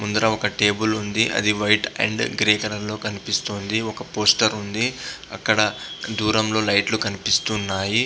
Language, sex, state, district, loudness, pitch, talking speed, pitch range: Telugu, male, Andhra Pradesh, Visakhapatnam, -21 LUFS, 105 Hz, 140 wpm, 105-110 Hz